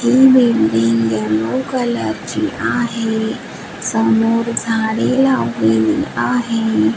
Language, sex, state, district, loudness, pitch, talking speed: Marathi, female, Maharashtra, Washim, -16 LUFS, 225 Hz, 85 wpm